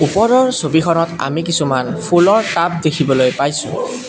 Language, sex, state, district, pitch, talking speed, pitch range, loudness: Assamese, male, Assam, Kamrup Metropolitan, 165 Hz, 115 wpm, 145-180 Hz, -15 LUFS